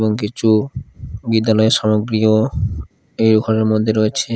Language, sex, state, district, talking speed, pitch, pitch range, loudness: Bengali, male, Odisha, Khordha, 110 wpm, 110 Hz, 110-115 Hz, -16 LUFS